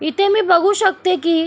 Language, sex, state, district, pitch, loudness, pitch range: Marathi, female, Maharashtra, Solapur, 370 Hz, -15 LUFS, 335-395 Hz